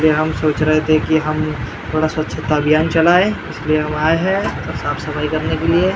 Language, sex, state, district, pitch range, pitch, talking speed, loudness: Hindi, male, Maharashtra, Gondia, 155-160 Hz, 155 Hz, 200 wpm, -17 LUFS